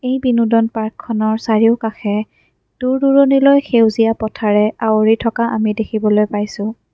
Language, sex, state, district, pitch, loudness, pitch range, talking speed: Assamese, female, Assam, Kamrup Metropolitan, 225 Hz, -15 LUFS, 215-235 Hz, 110 wpm